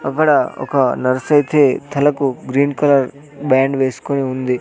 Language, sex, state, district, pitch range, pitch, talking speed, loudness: Telugu, male, Andhra Pradesh, Sri Satya Sai, 130-145 Hz, 140 Hz, 115 wpm, -16 LUFS